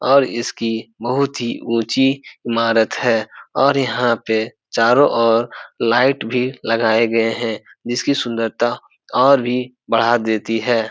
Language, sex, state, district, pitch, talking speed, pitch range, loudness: Hindi, male, Bihar, Supaul, 120 Hz, 130 wpm, 115-125 Hz, -18 LUFS